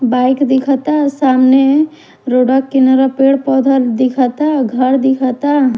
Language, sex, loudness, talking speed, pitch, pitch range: Bhojpuri, female, -12 LUFS, 105 wpm, 265 Hz, 255-275 Hz